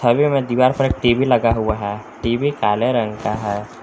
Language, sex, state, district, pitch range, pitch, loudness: Hindi, male, Jharkhand, Palamu, 105-130 Hz, 120 Hz, -18 LUFS